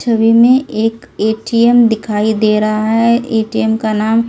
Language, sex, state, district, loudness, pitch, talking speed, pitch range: Hindi, female, Delhi, New Delhi, -13 LUFS, 225 Hz, 165 wpm, 220-230 Hz